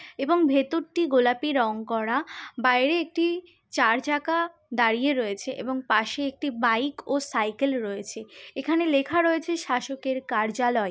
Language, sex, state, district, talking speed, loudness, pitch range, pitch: Bengali, female, West Bengal, Jhargram, 125 wpm, -25 LUFS, 235-315 Hz, 265 Hz